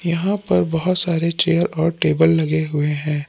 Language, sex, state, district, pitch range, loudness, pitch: Hindi, male, Jharkhand, Palamu, 155-170 Hz, -18 LUFS, 165 Hz